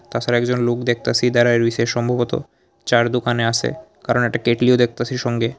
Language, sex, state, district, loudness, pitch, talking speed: Bengali, male, Tripura, Unakoti, -18 LUFS, 120 Hz, 160 wpm